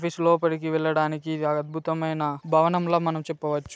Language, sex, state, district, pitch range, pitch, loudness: Telugu, male, Telangana, Nalgonda, 155-165 Hz, 160 Hz, -25 LUFS